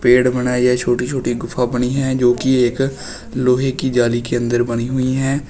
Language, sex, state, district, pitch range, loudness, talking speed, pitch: Hindi, male, Uttar Pradesh, Shamli, 120-130 Hz, -17 LUFS, 205 wpm, 125 Hz